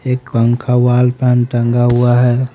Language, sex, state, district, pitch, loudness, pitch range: Hindi, male, Haryana, Rohtak, 125 Hz, -13 LUFS, 120-125 Hz